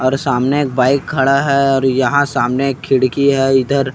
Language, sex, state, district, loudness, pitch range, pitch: Chhattisgarhi, male, Chhattisgarh, Kabirdham, -14 LUFS, 130-140 Hz, 135 Hz